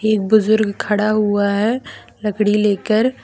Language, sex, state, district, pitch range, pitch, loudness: Hindi, female, Jharkhand, Deoghar, 205-215 Hz, 215 Hz, -17 LUFS